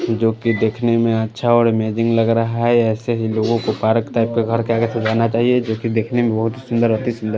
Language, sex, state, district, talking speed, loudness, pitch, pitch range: Hindi, male, Punjab, Fazilka, 230 wpm, -18 LUFS, 115 Hz, 110-115 Hz